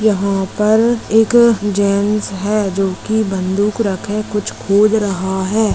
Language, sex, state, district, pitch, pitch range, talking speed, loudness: Hindi, female, Maharashtra, Aurangabad, 210 Hz, 195-215 Hz, 135 wpm, -15 LUFS